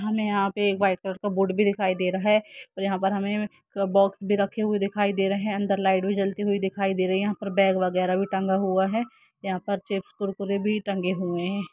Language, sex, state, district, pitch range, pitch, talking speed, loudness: Hindi, female, Jharkhand, Jamtara, 190-205 Hz, 195 Hz, 255 wpm, -25 LUFS